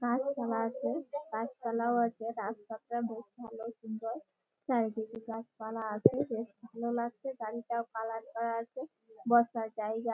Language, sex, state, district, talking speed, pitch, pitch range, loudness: Bengali, female, West Bengal, Malda, 120 wpm, 230 Hz, 225-235 Hz, -35 LUFS